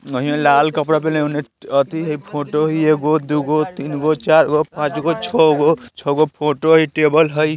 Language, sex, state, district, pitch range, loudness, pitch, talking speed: Bajjika, male, Bihar, Vaishali, 150-155 Hz, -16 LUFS, 155 Hz, 200 wpm